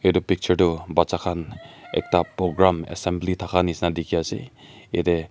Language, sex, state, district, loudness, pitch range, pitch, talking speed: Nagamese, male, Nagaland, Dimapur, -23 LUFS, 85-90 Hz, 90 Hz, 145 wpm